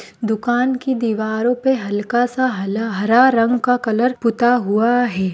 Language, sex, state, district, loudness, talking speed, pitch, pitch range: Hindi, female, Uttar Pradesh, Hamirpur, -17 LUFS, 155 wpm, 240 Hz, 220-250 Hz